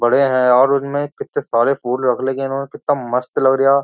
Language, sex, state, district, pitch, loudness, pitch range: Hindi, male, Uttar Pradesh, Jyotiba Phule Nagar, 135 Hz, -17 LUFS, 125-140 Hz